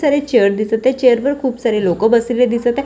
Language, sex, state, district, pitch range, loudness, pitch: Marathi, female, Maharashtra, Washim, 225-260 Hz, -15 LUFS, 240 Hz